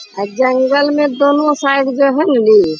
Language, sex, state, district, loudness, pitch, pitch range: Hindi, female, Bihar, Bhagalpur, -12 LUFS, 275 Hz, 250-285 Hz